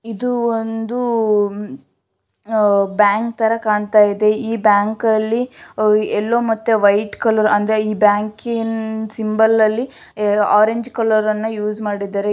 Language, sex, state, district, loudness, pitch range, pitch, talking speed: Kannada, female, Karnataka, Shimoga, -17 LUFS, 210-225 Hz, 215 Hz, 95 wpm